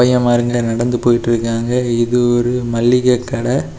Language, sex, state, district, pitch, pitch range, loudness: Tamil, male, Tamil Nadu, Kanyakumari, 120 Hz, 115-125 Hz, -15 LUFS